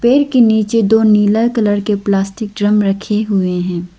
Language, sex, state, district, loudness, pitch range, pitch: Hindi, female, Arunachal Pradesh, Lower Dibang Valley, -13 LUFS, 200-220 Hz, 210 Hz